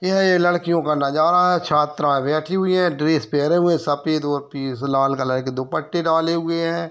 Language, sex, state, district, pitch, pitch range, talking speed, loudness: Hindi, male, Bihar, Muzaffarpur, 155 Hz, 145-175 Hz, 200 wpm, -19 LUFS